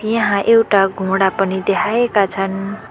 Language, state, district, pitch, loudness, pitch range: Nepali, West Bengal, Darjeeling, 200 Hz, -16 LUFS, 195-220 Hz